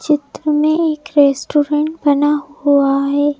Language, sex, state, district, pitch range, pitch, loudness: Hindi, male, Madhya Pradesh, Bhopal, 285-305 Hz, 295 Hz, -15 LUFS